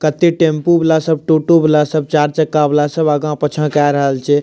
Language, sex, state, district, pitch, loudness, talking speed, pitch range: Maithili, male, Bihar, Madhepura, 150 Hz, -14 LUFS, 215 wpm, 150-160 Hz